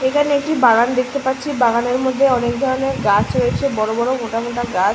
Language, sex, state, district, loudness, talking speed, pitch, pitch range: Bengali, female, West Bengal, Malda, -17 LUFS, 195 wpm, 255 Hz, 235-270 Hz